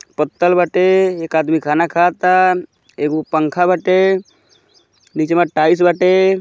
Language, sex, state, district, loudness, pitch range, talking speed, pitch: Bhojpuri, male, Uttar Pradesh, Gorakhpur, -15 LUFS, 160-185 Hz, 110 wpm, 180 Hz